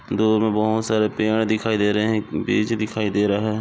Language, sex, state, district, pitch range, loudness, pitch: Hindi, male, Maharashtra, Aurangabad, 105-110 Hz, -21 LUFS, 110 Hz